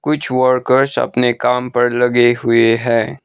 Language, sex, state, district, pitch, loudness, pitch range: Hindi, male, Sikkim, Gangtok, 125 Hz, -14 LUFS, 120-130 Hz